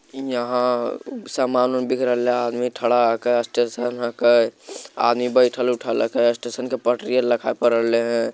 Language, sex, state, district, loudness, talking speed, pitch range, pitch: Magahi, male, Bihar, Jamui, -21 LUFS, 195 wpm, 120-125 Hz, 120 Hz